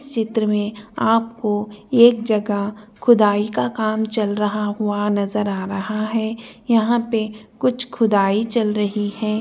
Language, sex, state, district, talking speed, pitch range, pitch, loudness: Hindi, female, Bihar, Jahanabad, 140 wpm, 210-225 Hz, 215 Hz, -20 LUFS